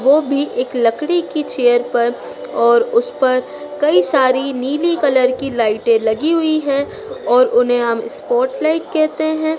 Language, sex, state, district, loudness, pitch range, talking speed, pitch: Hindi, female, Madhya Pradesh, Dhar, -16 LUFS, 245-315 Hz, 165 wpm, 275 Hz